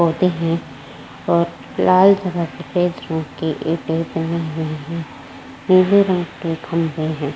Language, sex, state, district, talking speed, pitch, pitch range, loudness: Hindi, female, Uttar Pradesh, Varanasi, 90 wpm, 165 Hz, 160-180 Hz, -19 LUFS